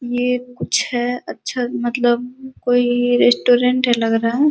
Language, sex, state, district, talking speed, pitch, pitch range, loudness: Hindi, female, Uttar Pradesh, Gorakhpur, 145 wpm, 245 Hz, 240-250 Hz, -18 LUFS